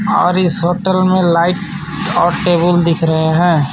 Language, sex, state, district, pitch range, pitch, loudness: Hindi, male, Jharkhand, Ranchi, 170-185 Hz, 175 Hz, -13 LUFS